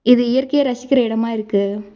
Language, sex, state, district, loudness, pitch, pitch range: Tamil, female, Tamil Nadu, Nilgiris, -17 LUFS, 240 Hz, 215-255 Hz